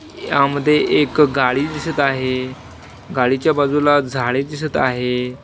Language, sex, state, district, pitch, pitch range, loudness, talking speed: Marathi, male, Maharashtra, Washim, 140 Hz, 130-150 Hz, -17 LUFS, 110 wpm